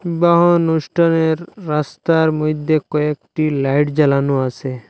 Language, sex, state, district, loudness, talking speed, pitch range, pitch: Bengali, male, Assam, Hailakandi, -17 LUFS, 100 wpm, 145-165 Hz, 155 Hz